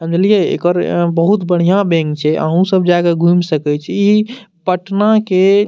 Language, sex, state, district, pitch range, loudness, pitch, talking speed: Maithili, male, Bihar, Madhepura, 170-200 Hz, -13 LUFS, 180 Hz, 170 wpm